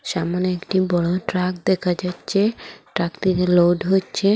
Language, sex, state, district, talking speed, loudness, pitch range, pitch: Bengali, female, Assam, Hailakandi, 125 wpm, -21 LUFS, 175-190 Hz, 180 Hz